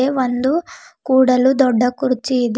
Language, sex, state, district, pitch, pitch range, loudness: Kannada, female, Karnataka, Bidar, 260 Hz, 250-265 Hz, -16 LUFS